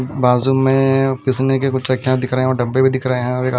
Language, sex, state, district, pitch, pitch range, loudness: Hindi, male, Punjab, Fazilka, 130 Hz, 125-135 Hz, -16 LUFS